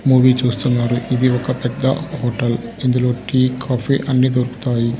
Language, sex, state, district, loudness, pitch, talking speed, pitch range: Telugu, male, Andhra Pradesh, Sri Satya Sai, -18 LUFS, 125 Hz, 130 wpm, 120-130 Hz